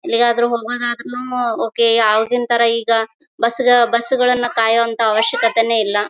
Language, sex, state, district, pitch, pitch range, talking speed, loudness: Kannada, female, Karnataka, Bellary, 235 Hz, 230-245 Hz, 110 wpm, -16 LUFS